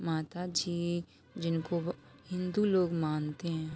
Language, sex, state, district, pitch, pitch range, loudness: Hindi, female, Jharkhand, Sahebganj, 170 Hz, 160-180 Hz, -33 LUFS